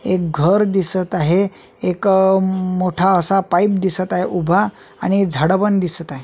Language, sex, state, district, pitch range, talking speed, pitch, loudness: Marathi, male, Maharashtra, Solapur, 180-195 Hz, 155 wpm, 185 Hz, -17 LUFS